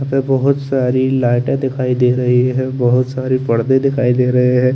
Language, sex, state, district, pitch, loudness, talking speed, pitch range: Hindi, male, Chandigarh, Chandigarh, 130 Hz, -15 LUFS, 200 wpm, 125-135 Hz